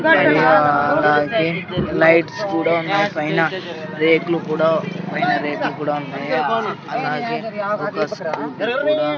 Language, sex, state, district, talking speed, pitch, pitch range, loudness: Telugu, male, Andhra Pradesh, Sri Satya Sai, 110 wpm, 160 Hz, 150-185 Hz, -18 LUFS